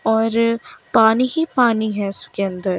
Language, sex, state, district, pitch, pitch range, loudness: Hindi, female, Bihar, Kishanganj, 225 Hz, 200-230 Hz, -18 LUFS